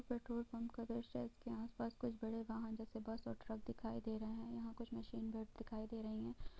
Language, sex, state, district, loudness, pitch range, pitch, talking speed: Hindi, female, Bihar, Gopalganj, -48 LUFS, 220-235 Hz, 225 Hz, 225 wpm